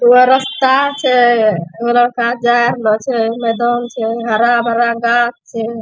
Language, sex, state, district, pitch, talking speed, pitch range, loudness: Angika, female, Bihar, Bhagalpur, 240 Hz, 135 wpm, 230-245 Hz, -13 LUFS